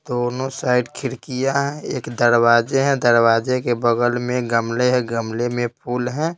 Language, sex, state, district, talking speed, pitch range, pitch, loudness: Hindi, male, Bihar, Patna, 160 wpm, 120-130 Hz, 120 Hz, -19 LUFS